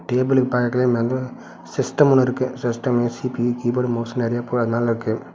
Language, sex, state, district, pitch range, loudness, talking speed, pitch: Tamil, male, Tamil Nadu, Namakkal, 120-125 Hz, -21 LUFS, 170 wpm, 125 Hz